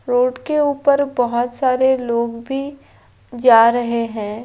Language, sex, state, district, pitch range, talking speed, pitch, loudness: Hindi, female, Bihar, Purnia, 235-270 Hz, 135 wpm, 245 Hz, -17 LUFS